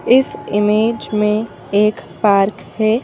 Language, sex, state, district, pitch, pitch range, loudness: Hindi, female, Madhya Pradesh, Bhopal, 215 Hz, 210-220 Hz, -16 LUFS